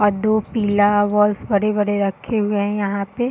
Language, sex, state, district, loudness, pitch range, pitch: Hindi, female, Bihar, Sitamarhi, -19 LUFS, 200-215 Hz, 205 Hz